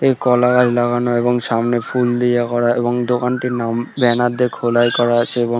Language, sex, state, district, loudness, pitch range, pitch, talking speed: Bengali, male, West Bengal, Purulia, -16 LUFS, 120-125 Hz, 120 Hz, 195 wpm